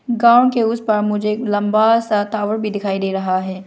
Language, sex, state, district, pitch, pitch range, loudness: Hindi, female, Arunachal Pradesh, Lower Dibang Valley, 210 Hz, 205-225 Hz, -17 LUFS